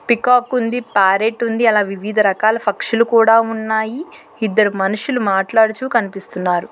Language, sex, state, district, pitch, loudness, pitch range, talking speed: Telugu, female, Telangana, Hyderabad, 220 Hz, -16 LUFS, 205-235 Hz, 125 wpm